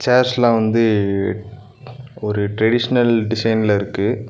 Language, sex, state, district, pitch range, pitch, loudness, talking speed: Tamil, male, Tamil Nadu, Nilgiris, 105-120 Hz, 110 Hz, -17 LUFS, 85 wpm